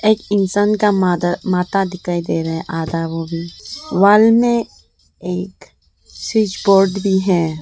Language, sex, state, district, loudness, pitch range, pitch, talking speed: Hindi, female, Arunachal Pradesh, Lower Dibang Valley, -16 LUFS, 175-205 Hz, 190 Hz, 150 wpm